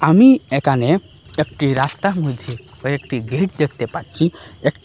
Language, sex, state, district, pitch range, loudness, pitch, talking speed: Bengali, male, Assam, Hailakandi, 130-165 Hz, -18 LUFS, 140 Hz, 150 wpm